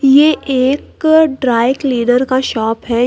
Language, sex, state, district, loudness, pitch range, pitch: Hindi, male, Uttar Pradesh, Lucknow, -13 LUFS, 245-280 Hz, 260 Hz